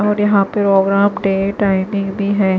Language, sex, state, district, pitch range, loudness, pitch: Hindi, female, Maharashtra, Washim, 195-205 Hz, -15 LUFS, 200 Hz